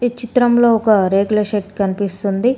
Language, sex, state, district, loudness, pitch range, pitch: Telugu, female, Telangana, Komaram Bheem, -16 LUFS, 200-240 Hz, 210 Hz